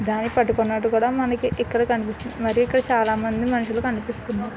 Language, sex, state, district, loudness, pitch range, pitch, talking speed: Telugu, female, Andhra Pradesh, Krishna, -22 LUFS, 225-240 Hz, 235 Hz, 155 wpm